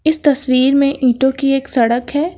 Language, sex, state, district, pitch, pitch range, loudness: Hindi, female, Uttar Pradesh, Lucknow, 275 Hz, 255-290 Hz, -14 LUFS